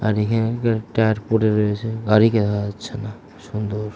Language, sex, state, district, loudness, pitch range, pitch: Bengali, male, West Bengal, Malda, -20 LUFS, 105-115 Hz, 110 Hz